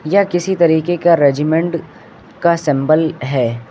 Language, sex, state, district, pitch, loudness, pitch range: Hindi, male, Uttar Pradesh, Lucknow, 160 Hz, -15 LUFS, 145-175 Hz